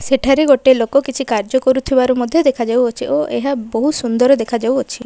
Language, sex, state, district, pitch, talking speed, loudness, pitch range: Odia, female, Odisha, Malkangiri, 260 Hz, 165 wpm, -15 LUFS, 245-275 Hz